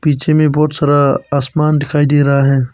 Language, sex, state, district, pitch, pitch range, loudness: Hindi, male, Arunachal Pradesh, Papum Pare, 145 Hz, 140-150 Hz, -13 LUFS